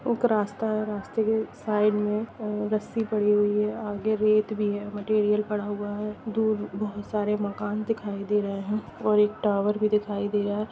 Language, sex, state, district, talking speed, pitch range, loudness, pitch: Hindi, female, Jharkhand, Jamtara, 185 wpm, 205-215 Hz, -26 LUFS, 210 Hz